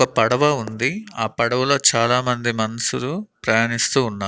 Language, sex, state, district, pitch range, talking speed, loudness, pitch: Telugu, male, Andhra Pradesh, Annamaya, 115-135 Hz, 125 wpm, -19 LUFS, 120 Hz